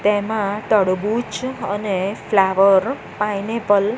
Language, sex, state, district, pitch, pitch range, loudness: Gujarati, female, Gujarat, Gandhinagar, 205 Hz, 195-215 Hz, -19 LUFS